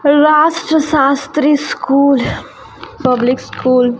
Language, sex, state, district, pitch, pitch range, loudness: Hindi, female, Chhattisgarh, Raipur, 280 Hz, 255-300 Hz, -13 LUFS